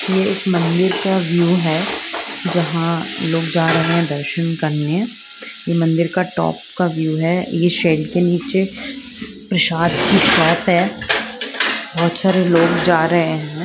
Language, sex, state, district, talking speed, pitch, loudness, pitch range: Hindi, female, Andhra Pradesh, Guntur, 145 wpm, 170 Hz, -16 LUFS, 165-185 Hz